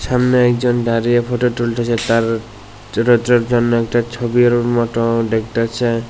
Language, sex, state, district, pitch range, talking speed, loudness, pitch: Bengali, male, Tripura, West Tripura, 115-120 Hz, 110 wpm, -16 LUFS, 120 Hz